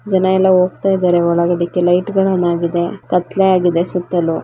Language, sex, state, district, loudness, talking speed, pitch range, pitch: Kannada, female, Karnataka, Belgaum, -15 LUFS, 160 wpm, 175-190 Hz, 180 Hz